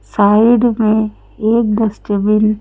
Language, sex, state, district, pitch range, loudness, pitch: Hindi, female, Madhya Pradesh, Bhopal, 210-225 Hz, -14 LUFS, 215 Hz